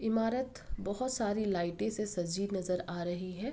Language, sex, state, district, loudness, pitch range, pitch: Hindi, female, Uttar Pradesh, Ghazipur, -35 LUFS, 180-225 Hz, 200 Hz